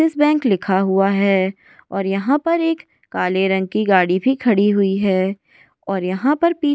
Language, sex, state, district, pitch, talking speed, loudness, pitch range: Hindi, female, Goa, North and South Goa, 200 Hz, 180 wpm, -18 LUFS, 190-285 Hz